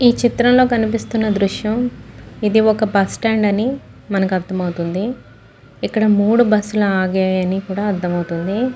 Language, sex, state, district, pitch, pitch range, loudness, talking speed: Telugu, female, Andhra Pradesh, Guntur, 205 Hz, 185-225 Hz, -17 LUFS, 135 wpm